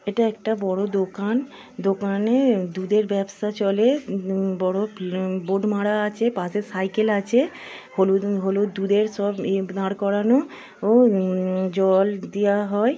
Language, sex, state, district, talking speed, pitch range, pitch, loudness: Bengali, female, West Bengal, Paschim Medinipur, 115 wpm, 190-215 Hz, 200 Hz, -22 LUFS